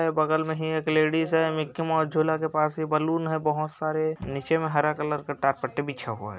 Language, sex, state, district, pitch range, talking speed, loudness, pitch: Hindi, male, Uttar Pradesh, Hamirpur, 150-160 Hz, 235 wpm, -26 LUFS, 155 Hz